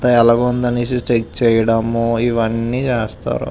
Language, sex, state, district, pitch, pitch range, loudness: Telugu, male, Andhra Pradesh, Visakhapatnam, 115 Hz, 115-125 Hz, -16 LUFS